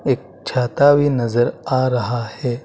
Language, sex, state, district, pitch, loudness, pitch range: Hindi, male, Madhya Pradesh, Dhar, 125 Hz, -18 LUFS, 120-140 Hz